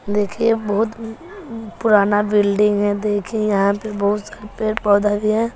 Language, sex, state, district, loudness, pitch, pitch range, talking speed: Hindi, female, Bihar, West Champaran, -18 LUFS, 210 Hz, 205-220 Hz, 160 wpm